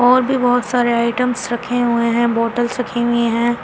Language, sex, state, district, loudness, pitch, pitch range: Hindi, female, Delhi, New Delhi, -17 LUFS, 240 Hz, 235-245 Hz